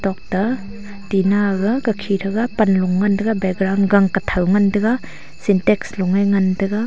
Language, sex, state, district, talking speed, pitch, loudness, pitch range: Wancho, female, Arunachal Pradesh, Longding, 150 wpm, 200 Hz, -18 LUFS, 195-210 Hz